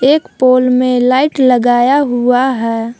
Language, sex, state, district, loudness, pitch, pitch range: Hindi, female, Jharkhand, Palamu, -11 LUFS, 255 Hz, 245-265 Hz